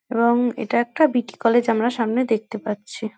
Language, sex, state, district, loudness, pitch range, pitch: Bengali, female, West Bengal, North 24 Parganas, -21 LUFS, 225-240 Hz, 235 Hz